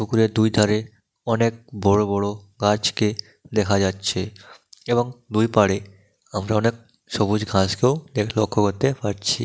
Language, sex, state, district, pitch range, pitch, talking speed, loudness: Bengali, male, West Bengal, Dakshin Dinajpur, 100-115 Hz, 105 Hz, 125 wpm, -22 LUFS